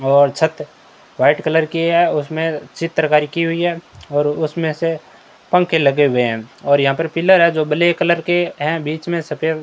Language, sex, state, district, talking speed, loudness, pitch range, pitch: Hindi, male, Rajasthan, Bikaner, 200 wpm, -17 LUFS, 145-170 Hz, 160 Hz